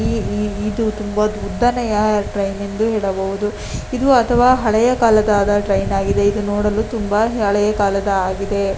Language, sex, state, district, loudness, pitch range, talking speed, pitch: Kannada, female, Karnataka, Dakshina Kannada, -17 LUFS, 200-220 Hz, 125 wpm, 210 Hz